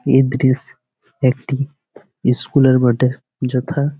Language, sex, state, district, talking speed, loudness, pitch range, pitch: Bengali, male, West Bengal, Malda, 105 wpm, -17 LUFS, 130-140 Hz, 130 Hz